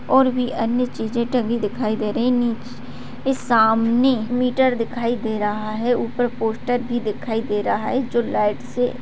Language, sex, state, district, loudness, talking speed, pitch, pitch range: Hindi, female, Bihar, Jahanabad, -21 LUFS, 185 wpm, 235 Hz, 220-250 Hz